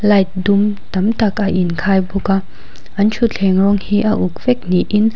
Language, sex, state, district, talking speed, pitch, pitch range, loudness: Mizo, female, Mizoram, Aizawl, 185 wpm, 200 Hz, 185-210 Hz, -16 LUFS